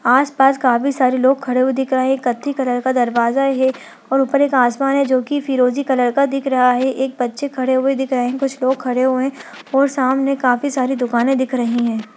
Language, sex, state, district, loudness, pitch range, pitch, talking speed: Hindi, female, Bihar, Gaya, -17 LUFS, 250-270 Hz, 260 Hz, 230 wpm